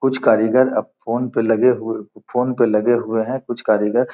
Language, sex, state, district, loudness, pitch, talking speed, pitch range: Hindi, male, Bihar, Gopalganj, -18 LUFS, 120 Hz, 205 wpm, 110-125 Hz